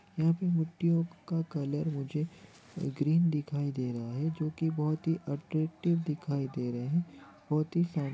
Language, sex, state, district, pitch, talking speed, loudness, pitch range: Hindi, male, Chhattisgarh, Raigarh, 155 Hz, 160 wpm, -32 LUFS, 145-165 Hz